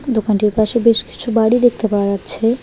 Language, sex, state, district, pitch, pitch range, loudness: Bengali, female, West Bengal, Alipurduar, 225 Hz, 215-235 Hz, -16 LUFS